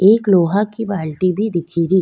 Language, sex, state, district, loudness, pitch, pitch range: Rajasthani, female, Rajasthan, Nagaur, -17 LUFS, 190 Hz, 170-210 Hz